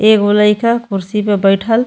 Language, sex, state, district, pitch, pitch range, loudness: Bhojpuri, female, Uttar Pradesh, Ghazipur, 210 Hz, 205-225 Hz, -13 LUFS